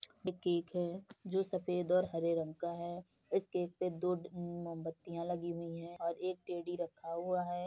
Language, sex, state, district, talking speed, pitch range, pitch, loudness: Hindi, female, Uttar Pradesh, Budaun, 195 wpm, 170-180 Hz, 175 Hz, -39 LUFS